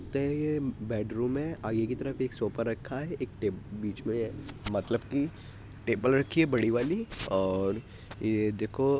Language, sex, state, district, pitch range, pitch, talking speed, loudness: Hindi, male, Uttar Pradesh, Muzaffarnagar, 105-135 Hz, 115 Hz, 175 wpm, -31 LUFS